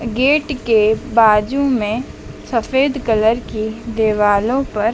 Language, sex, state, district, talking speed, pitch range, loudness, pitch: Hindi, female, Madhya Pradesh, Dhar, 120 wpm, 215-265 Hz, -16 LUFS, 230 Hz